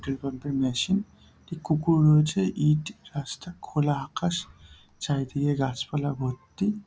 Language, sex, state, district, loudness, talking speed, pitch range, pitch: Bengali, male, West Bengal, Purulia, -27 LUFS, 120 wpm, 135-165 Hz, 145 Hz